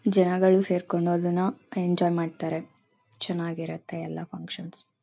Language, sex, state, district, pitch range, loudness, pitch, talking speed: Kannada, female, Karnataka, Mysore, 165-185 Hz, -27 LUFS, 175 Hz, 120 wpm